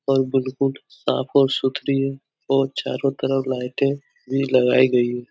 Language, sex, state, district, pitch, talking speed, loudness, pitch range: Hindi, male, Uttar Pradesh, Etah, 135 Hz, 135 wpm, -21 LUFS, 130-135 Hz